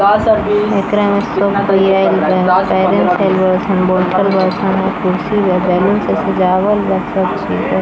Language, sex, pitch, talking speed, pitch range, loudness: Bhojpuri, female, 195 Hz, 90 wpm, 185-205 Hz, -13 LUFS